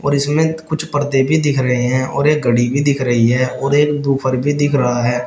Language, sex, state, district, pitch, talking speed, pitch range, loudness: Hindi, male, Uttar Pradesh, Shamli, 140 Hz, 240 wpm, 125-145 Hz, -16 LUFS